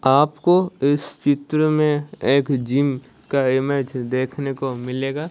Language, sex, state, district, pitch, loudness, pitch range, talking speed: Hindi, female, Odisha, Malkangiri, 140 Hz, -20 LUFS, 130-145 Hz, 125 wpm